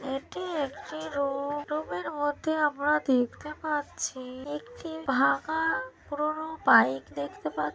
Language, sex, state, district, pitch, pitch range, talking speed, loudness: Bengali, female, West Bengal, Kolkata, 290 Hz, 260-310 Hz, 115 wpm, -29 LUFS